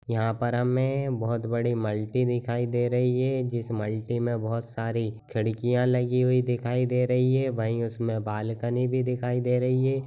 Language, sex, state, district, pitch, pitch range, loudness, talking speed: Hindi, male, Bihar, Jamui, 120 Hz, 115-125 Hz, -27 LUFS, 185 wpm